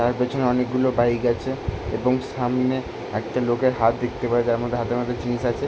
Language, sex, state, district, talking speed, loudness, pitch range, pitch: Bengali, male, West Bengal, Jalpaiguri, 200 wpm, -23 LUFS, 120-125 Hz, 120 Hz